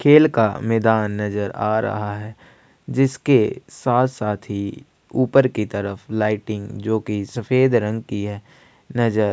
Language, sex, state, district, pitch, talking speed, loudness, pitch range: Hindi, male, Chhattisgarh, Kabirdham, 110 Hz, 130 wpm, -20 LUFS, 105-120 Hz